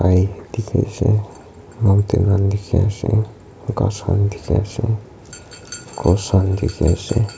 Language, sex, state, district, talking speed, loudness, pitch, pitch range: Nagamese, male, Nagaland, Kohima, 115 wpm, -19 LUFS, 105 Hz, 100-115 Hz